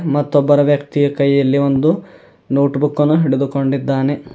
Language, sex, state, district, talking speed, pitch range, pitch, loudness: Kannada, male, Karnataka, Bidar, 110 wpm, 140-145 Hz, 140 Hz, -15 LUFS